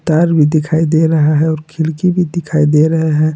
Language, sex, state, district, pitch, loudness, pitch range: Hindi, male, Jharkhand, Palamu, 160 Hz, -13 LUFS, 155-160 Hz